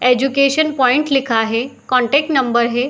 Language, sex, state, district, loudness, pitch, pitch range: Hindi, female, Bihar, Saharsa, -15 LUFS, 255 Hz, 245-275 Hz